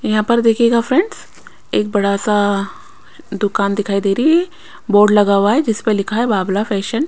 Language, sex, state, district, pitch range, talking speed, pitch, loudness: Hindi, female, Haryana, Rohtak, 200-235 Hz, 195 wpm, 210 Hz, -15 LUFS